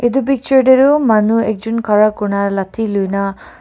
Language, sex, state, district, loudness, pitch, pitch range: Nagamese, female, Nagaland, Kohima, -14 LUFS, 220 Hz, 200-260 Hz